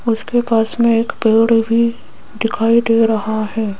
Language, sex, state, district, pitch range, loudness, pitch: Hindi, female, Rajasthan, Jaipur, 225-230 Hz, -15 LUFS, 225 Hz